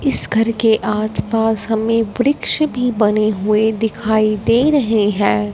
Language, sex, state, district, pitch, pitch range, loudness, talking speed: Hindi, female, Punjab, Fazilka, 220 Hz, 215-230 Hz, -16 LUFS, 140 wpm